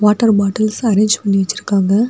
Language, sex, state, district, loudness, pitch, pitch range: Tamil, female, Tamil Nadu, Kanyakumari, -15 LUFS, 210 Hz, 200-215 Hz